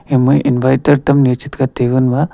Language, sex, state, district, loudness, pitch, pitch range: Wancho, male, Arunachal Pradesh, Longding, -13 LUFS, 130 Hz, 130-140 Hz